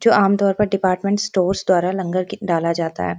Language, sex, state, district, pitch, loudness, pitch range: Hindi, female, Uttarakhand, Uttarkashi, 190 Hz, -19 LUFS, 175-200 Hz